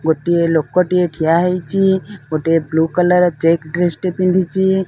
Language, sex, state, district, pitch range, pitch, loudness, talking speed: Odia, female, Odisha, Sambalpur, 165-185 Hz, 175 Hz, -16 LUFS, 135 wpm